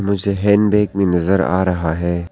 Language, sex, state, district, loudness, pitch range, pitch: Hindi, male, Arunachal Pradesh, Papum Pare, -16 LUFS, 85-100 Hz, 95 Hz